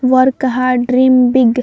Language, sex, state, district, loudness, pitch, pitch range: Hindi, female, Bihar, Vaishali, -12 LUFS, 255 Hz, 250-260 Hz